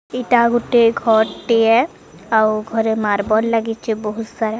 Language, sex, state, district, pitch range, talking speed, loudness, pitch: Odia, female, Odisha, Sambalpur, 220-230 Hz, 130 wpm, -17 LUFS, 225 Hz